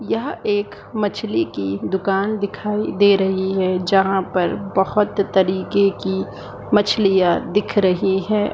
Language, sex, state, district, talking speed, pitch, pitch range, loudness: Hindi, female, Bihar, Supaul, 125 wpm, 195 Hz, 185-205 Hz, -19 LUFS